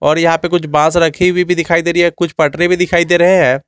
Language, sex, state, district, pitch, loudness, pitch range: Hindi, male, Jharkhand, Garhwa, 170 Hz, -12 LUFS, 160-175 Hz